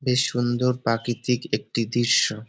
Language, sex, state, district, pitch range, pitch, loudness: Bengali, male, West Bengal, Dakshin Dinajpur, 115-125 Hz, 120 Hz, -23 LUFS